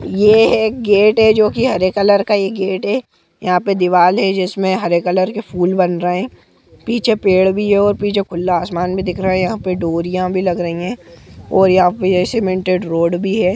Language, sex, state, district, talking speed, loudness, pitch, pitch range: Hindi, female, Jharkhand, Jamtara, 225 wpm, -15 LUFS, 185 Hz, 180-205 Hz